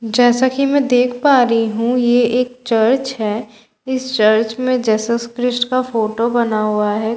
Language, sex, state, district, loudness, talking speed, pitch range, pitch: Hindi, female, Bihar, Katihar, -16 LUFS, 190 wpm, 220-255 Hz, 240 Hz